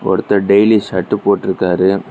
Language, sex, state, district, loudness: Tamil, male, Tamil Nadu, Kanyakumari, -14 LUFS